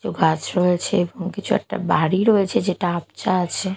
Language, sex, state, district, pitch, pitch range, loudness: Bengali, female, Odisha, Malkangiri, 185 Hz, 175-195 Hz, -21 LUFS